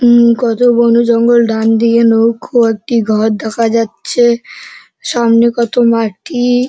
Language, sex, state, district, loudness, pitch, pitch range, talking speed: Bengali, male, West Bengal, Dakshin Dinajpur, -11 LUFS, 235 Hz, 230-240 Hz, 135 wpm